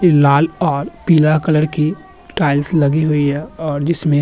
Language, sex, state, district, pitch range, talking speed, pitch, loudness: Hindi, male, Uttar Pradesh, Hamirpur, 145-165 Hz, 170 wpm, 155 Hz, -15 LUFS